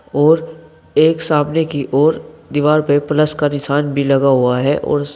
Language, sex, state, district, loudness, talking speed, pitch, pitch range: Hindi, male, Uttar Pradesh, Saharanpur, -15 LUFS, 175 wpm, 150 Hz, 140-155 Hz